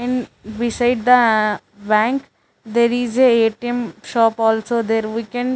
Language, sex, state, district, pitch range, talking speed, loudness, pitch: English, female, Chandigarh, Chandigarh, 220-245 Hz, 160 wpm, -18 LUFS, 235 Hz